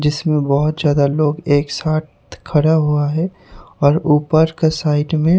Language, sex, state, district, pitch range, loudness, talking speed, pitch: Hindi, male, Haryana, Charkhi Dadri, 145-160 Hz, -16 LUFS, 155 wpm, 150 Hz